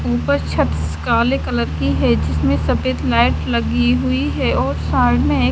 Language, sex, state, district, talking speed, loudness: Hindi, female, Haryana, Charkhi Dadri, 185 wpm, -17 LUFS